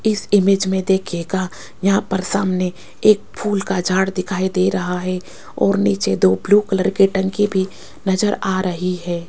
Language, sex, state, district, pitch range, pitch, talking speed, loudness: Hindi, female, Rajasthan, Jaipur, 180-195 Hz, 190 Hz, 175 wpm, -18 LUFS